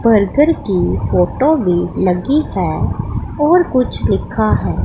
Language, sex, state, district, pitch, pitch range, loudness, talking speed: Hindi, female, Punjab, Pathankot, 225 Hz, 175-295 Hz, -15 LUFS, 125 wpm